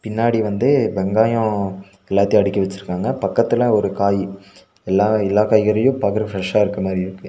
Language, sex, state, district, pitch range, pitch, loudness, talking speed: Tamil, male, Tamil Nadu, Nilgiris, 95-110 Hz, 100 Hz, -18 LUFS, 140 wpm